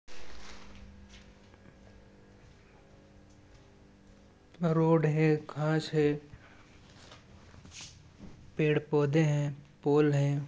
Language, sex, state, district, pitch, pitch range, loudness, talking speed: Hindi, male, Goa, North and South Goa, 105 Hz, 100-150 Hz, -29 LUFS, 50 wpm